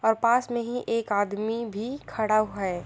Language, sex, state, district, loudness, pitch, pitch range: Hindi, female, Uttar Pradesh, Jalaun, -27 LUFS, 225 Hz, 210-235 Hz